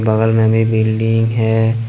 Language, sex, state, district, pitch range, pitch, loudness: Hindi, male, Jharkhand, Ranchi, 110-115 Hz, 110 Hz, -14 LUFS